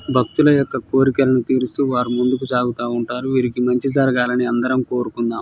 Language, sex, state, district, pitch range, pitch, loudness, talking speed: Telugu, male, Telangana, Nalgonda, 125-130 Hz, 125 Hz, -18 LUFS, 145 wpm